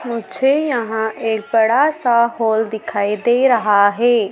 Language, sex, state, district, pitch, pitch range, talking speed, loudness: Hindi, female, Madhya Pradesh, Dhar, 230 Hz, 220-240 Hz, 140 wpm, -16 LUFS